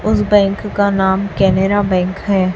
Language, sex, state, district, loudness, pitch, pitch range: Hindi, female, Chhattisgarh, Raipur, -15 LUFS, 195 Hz, 190-205 Hz